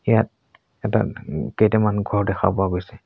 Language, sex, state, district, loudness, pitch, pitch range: Assamese, male, Assam, Sonitpur, -22 LUFS, 105 Hz, 95-110 Hz